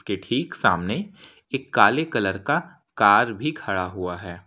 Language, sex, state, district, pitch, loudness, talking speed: Hindi, male, Jharkhand, Ranchi, 105 Hz, -22 LUFS, 160 wpm